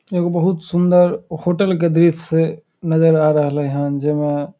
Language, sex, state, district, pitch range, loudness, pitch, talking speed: Maithili, male, Bihar, Samastipur, 150-175 Hz, -17 LUFS, 165 Hz, 170 wpm